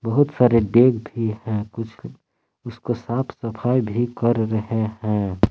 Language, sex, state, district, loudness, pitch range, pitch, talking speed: Hindi, male, Jharkhand, Palamu, -21 LUFS, 110-120 Hz, 115 Hz, 140 wpm